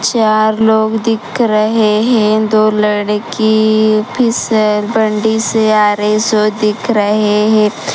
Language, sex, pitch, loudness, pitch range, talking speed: Hindi, female, 215 Hz, -12 LUFS, 210-220 Hz, 135 wpm